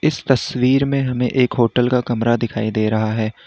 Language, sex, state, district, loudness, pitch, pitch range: Hindi, male, Uttar Pradesh, Lalitpur, -18 LUFS, 125 Hz, 115-130 Hz